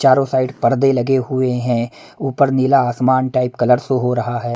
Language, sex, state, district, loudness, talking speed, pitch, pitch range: Hindi, male, Punjab, Pathankot, -16 LUFS, 195 wpm, 130 Hz, 125-135 Hz